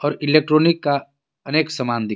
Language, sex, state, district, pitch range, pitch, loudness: Hindi, male, Jharkhand, Garhwa, 140-155 Hz, 145 Hz, -19 LUFS